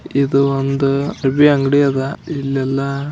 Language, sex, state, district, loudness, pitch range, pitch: Kannada, male, Karnataka, Bijapur, -16 LUFS, 135-140 Hz, 140 Hz